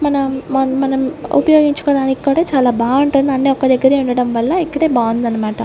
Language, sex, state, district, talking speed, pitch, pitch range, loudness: Telugu, female, Andhra Pradesh, Sri Satya Sai, 150 wpm, 270 Hz, 250-285 Hz, -14 LUFS